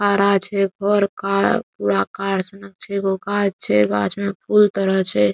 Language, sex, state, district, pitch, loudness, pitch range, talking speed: Maithili, male, Bihar, Saharsa, 195 Hz, -19 LUFS, 190-200 Hz, 200 wpm